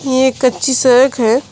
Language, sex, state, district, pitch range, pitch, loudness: Hindi, female, West Bengal, Alipurduar, 250-265 Hz, 260 Hz, -12 LUFS